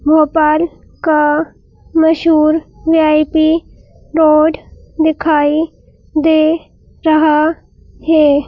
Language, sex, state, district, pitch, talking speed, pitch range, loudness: Hindi, female, Madhya Pradesh, Bhopal, 315 Hz, 65 wpm, 305-320 Hz, -13 LUFS